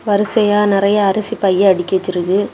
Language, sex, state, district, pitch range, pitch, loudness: Tamil, female, Tamil Nadu, Kanyakumari, 190-210 Hz, 200 Hz, -14 LUFS